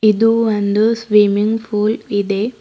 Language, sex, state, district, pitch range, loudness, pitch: Kannada, female, Karnataka, Bidar, 205-225 Hz, -15 LUFS, 215 Hz